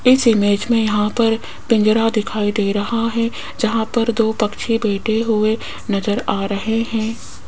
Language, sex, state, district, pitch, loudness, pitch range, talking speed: Hindi, female, Rajasthan, Jaipur, 220 Hz, -18 LUFS, 210-230 Hz, 160 wpm